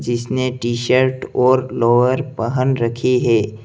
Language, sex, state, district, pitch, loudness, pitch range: Hindi, male, Uttar Pradesh, Lalitpur, 125 Hz, -17 LUFS, 120-130 Hz